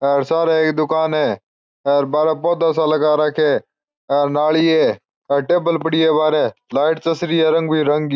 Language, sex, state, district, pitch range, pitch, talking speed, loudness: Marwari, male, Rajasthan, Churu, 150-160 Hz, 155 Hz, 190 wpm, -17 LUFS